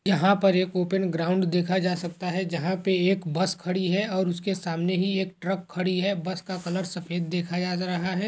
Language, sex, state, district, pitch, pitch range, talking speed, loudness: Hindi, male, Uttar Pradesh, Jalaun, 185 Hz, 180-190 Hz, 225 wpm, -26 LUFS